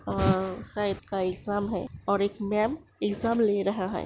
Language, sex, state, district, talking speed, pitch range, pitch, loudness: Hindi, female, Uttar Pradesh, Hamirpur, 175 wpm, 185-205 Hz, 200 Hz, -28 LUFS